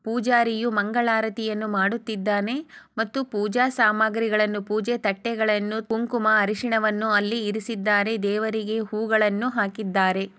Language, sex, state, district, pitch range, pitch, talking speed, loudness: Kannada, female, Karnataka, Chamarajanagar, 210-230 Hz, 220 Hz, 85 wpm, -23 LUFS